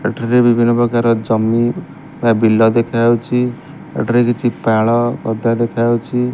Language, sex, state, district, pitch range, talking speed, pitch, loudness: Odia, male, Odisha, Malkangiri, 115-120 Hz, 115 wpm, 115 Hz, -15 LUFS